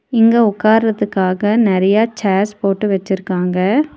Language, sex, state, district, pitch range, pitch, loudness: Tamil, female, Tamil Nadu, Nilgiris, 190-225 Hz, 205 Hz, -15 LUFS